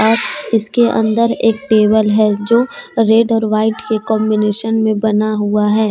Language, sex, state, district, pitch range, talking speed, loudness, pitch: Hindi, female, Jharkhand, Deoghar, 215-225 Hz, 140 wpm, -14 LUFS, 220 Hz